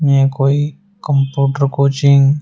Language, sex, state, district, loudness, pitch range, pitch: Hindi, male, Uttar Pradesh, Shamli, -14 LUFS, 135-145 Hz, 140 Hz